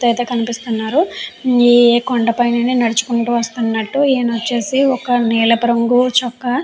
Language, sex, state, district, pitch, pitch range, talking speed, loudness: Telugu, female, Andhra Pradesh, Chittoor, 240 Hz, 235-250 Hz, 125 wpm, -15 LUFS